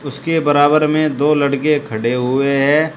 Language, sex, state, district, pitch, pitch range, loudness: Hindi, male, Uttar Pradesh, Shamli, 145 Hz, 140-155 Hz, -15 LUFS